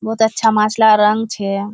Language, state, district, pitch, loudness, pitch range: Surjapuri, Bihar, Kishanganj, 215 Hz, -14 LUFS, 210-220 Hz